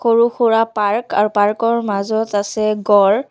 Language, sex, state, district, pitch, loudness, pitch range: Assamese, female, Assam, Sonitpur, 215 Hz, -16 LUFS, 205-230 Hz